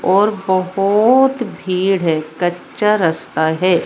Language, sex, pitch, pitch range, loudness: Hindi, female, 190 Hz, 175-210 Hz, -16 LUFS